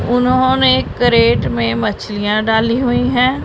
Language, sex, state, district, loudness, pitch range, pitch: Hindi, female, Punjab, Pathankot, -14 LUFS, 205-255 Hz, 240 Hz